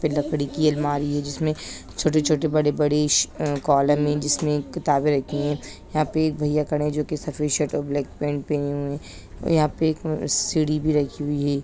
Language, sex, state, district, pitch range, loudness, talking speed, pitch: Hindi, male, Bihar, East Champaran, 145-155 Hz, -23 LUFS, 200 wpm, 150 Hz